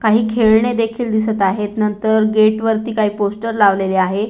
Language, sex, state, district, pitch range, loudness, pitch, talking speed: Marathi, female, Maharashtra, Aurangabad, 210-225 Hz, -16 LUFS, 220 Hz, 165 wpm